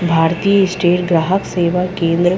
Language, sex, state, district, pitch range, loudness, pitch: Hindi, female, Chhattisgarh, Rajnandgaon, 170-185 Hz, -15 LUFS, 175 Hz